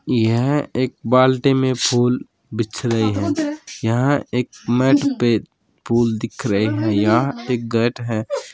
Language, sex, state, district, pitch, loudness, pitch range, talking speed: Hindi, male, Rajasthan, Churu, 120 Hz, -19 LUFS, 115-130 Hz, 140 wpm